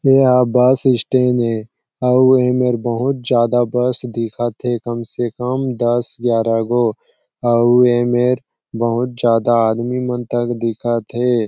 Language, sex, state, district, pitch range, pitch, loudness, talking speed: Chhattisgarhi, male, Chhattisgarh, Sarguja, 115-125 Hz, 120 Hz, -16 LUFS, 140 wpm